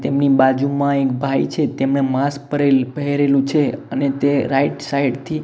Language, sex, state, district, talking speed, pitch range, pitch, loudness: Gujarati, male, Gujarat, Gandhinagar, 165 wpm, 135-140 Hz, 140 Hz, -18 LUFS